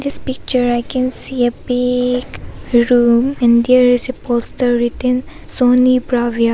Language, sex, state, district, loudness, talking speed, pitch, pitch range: English, female, Arunachal Pradesh, Papum Pare, -15 LUFS, 145 wpm, 250 Hz, 240-255 Hz